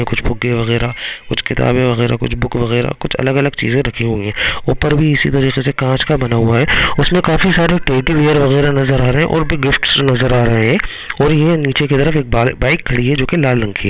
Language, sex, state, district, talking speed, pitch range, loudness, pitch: Hindi, male, Chhattisgarh, Rajnandgaon, 245 wpm, 120-150 Hz, -14 LUFS, 135 Hz